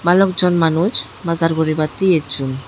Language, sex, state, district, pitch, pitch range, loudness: Chakma, female, Tripura, Unakoti, 165 Hz, 155-180 Hz, -16 LUFS